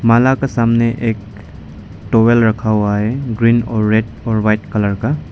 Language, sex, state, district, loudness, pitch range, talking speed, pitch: Hindi, male, Arunachal Pradesh, Lower Dibang Valley, -15 LUFS, 105-115 Hz, 170 wpm, 110 Hz